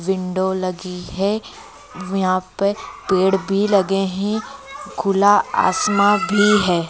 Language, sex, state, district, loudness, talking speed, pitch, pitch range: Hindi, female, Bihar, Bhagalpur, -18 LUFS, 115 wpm, 195 Hz, 185-205 Hz